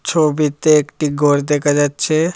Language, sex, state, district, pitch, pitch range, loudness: Bengali, male, Tripura, Dhalai, 150 Hz, 145-155 Hz, -15 LUFS